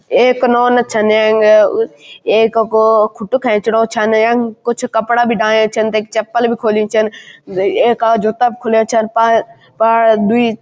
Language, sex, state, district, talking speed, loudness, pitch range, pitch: Garhwali, male, Uttarakhand, Uttarkashi, 150 wpm, -13 LUFS, 220-235 Hz, 225 Hz